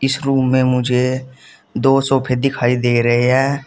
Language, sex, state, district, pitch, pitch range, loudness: Hindi, male, Uttar Pradesh, Saharanpur, 130 Hz, 125-135 Hz, -16 LUFS